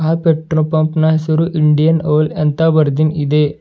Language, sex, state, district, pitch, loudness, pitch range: Kannada, male, Karnataka, Bidar, 155 Hz, -14 LUFS, 150-160 Hz